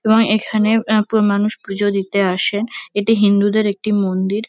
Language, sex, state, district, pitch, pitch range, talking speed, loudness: Bengali, female, West Bengal, North 24 Parganas, 210 Hz, 200-220 Hz, 145 wpm, -17 LUFS